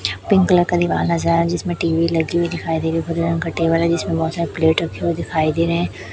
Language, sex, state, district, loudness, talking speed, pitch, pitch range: Hindi, male, Chhattisgarh, Raipur, -19 LUFS, 275 wpm, 165 Hz, 160-170 Hz